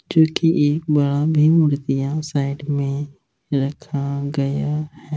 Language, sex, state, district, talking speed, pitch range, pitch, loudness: Hindi, male, Bihar, Araria, 115 wpm, 140-150 Hz, 145 Hz, -20 LUFS